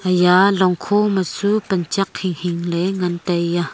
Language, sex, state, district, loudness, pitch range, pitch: Wancho, female, Arunachal Pradesh, Longding, -18 LUFS, 175-195 Hz, 185 Hz